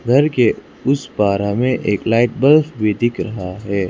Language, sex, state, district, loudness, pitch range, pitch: Hindi, male, Arunachal Pradesh, Lower Dibang Valley, -17 LUFS, 100-130 Hz, 120 Hz